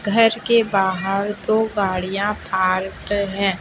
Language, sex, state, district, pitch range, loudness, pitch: Hindi, female, Chhattisgarh, Raipur, 190-215 Hz, -20 LUFS, 200 Hz